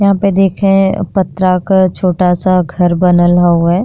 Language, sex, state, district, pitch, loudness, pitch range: Bhojpuri, female, Uttar Pradesh, Deoria, 185 Hz, -11 LUFS, 175-195 Hz